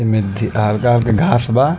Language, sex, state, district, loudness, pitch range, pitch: Bhojpuri, male, Bihar, East Champaran, -15 LUFS, 105-120 Hz, 110 Hz